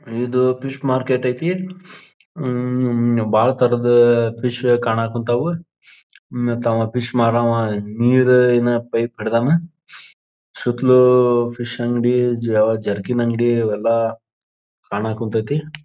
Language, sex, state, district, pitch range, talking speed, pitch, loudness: Kannada, male, Karnataka, Belgaum, 115-125 Hz, 100 wpm, 120 Hz, -18 LUFS